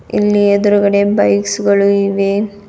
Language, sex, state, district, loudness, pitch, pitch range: Kannada, female, Karnataka, Bidar, -13 LUFS, 200 Hz, 200-205 Hz